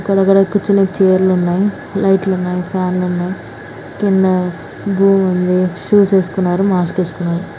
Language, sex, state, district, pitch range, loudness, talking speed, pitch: Telugu, female, Andhra Pradesh, Anantapur, 180-195 Hz, -15 LUFS, 140 wpm, 185 Hz